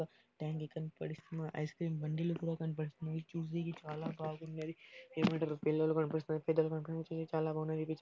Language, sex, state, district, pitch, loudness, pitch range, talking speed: Telugu, female, Andhra Pradesh, Anantapur, 160 Hz, -39 LUFS, 155-165 Hz, 140 wpm